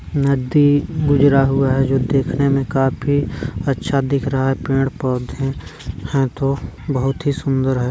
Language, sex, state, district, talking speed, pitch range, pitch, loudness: Hindi, male, Chhattisgarh, Raigarh, 145 wpm, 130-140 Hz, 135 Hz, -18 LUFS